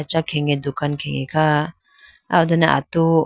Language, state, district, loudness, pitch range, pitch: Idu Mishmi, Arunachal Pradesh, Lower Dibang Valley, -19 LUFS, 145-165 Hz, 155 Hz